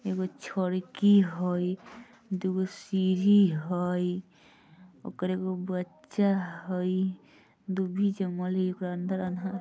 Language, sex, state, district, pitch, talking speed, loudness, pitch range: Bajjika, female, Bihar, Vaishali, 185 Hz, 100 wpm, -29 LUFS, 180-190 Hz